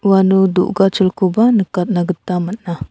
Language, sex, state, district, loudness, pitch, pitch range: Garo, female, Meghalaya, South Garo Hills, -15 LUFS, 190 Hz, 180-195 Hz